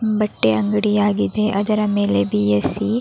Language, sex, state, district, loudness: Kannada, female, Karnataka, Raichur, -18 LUFS